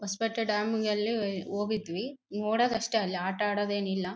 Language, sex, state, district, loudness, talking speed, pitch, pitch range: Kannada, female, Karnataka, Bellary, -30 LUFS, 160 wpm, 210 Hz, 200-225 Hz